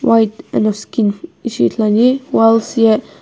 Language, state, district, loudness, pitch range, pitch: Sumi, Nagaland, Kohima, -14 LUFS, 215-230 Hz, 225 Hz